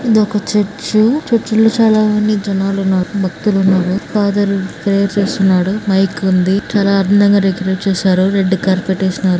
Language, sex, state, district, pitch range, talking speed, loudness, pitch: Telugu, female, Andhra Pradesh, Anantapur, 190-210 Hz, 155 wpm, -14 LUFS, 195 Hz